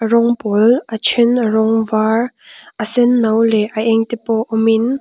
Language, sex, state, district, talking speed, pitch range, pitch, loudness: Mizo, female, Mizoram, Aizawl, 180 wpm, 220-235 Hz, 225 Hz, -15 LUFS